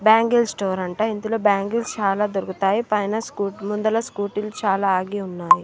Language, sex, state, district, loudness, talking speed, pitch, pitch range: Telugu, female, Andhra Pradesh, Srikakulam, -22 LUFS, 150 wpm, 205 Hz, 195-220 Hz